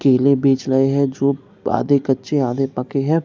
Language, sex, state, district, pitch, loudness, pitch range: Hindi, male, Bihar, Katihar, 135 Hz, -18 LUFS, 135-140 Hz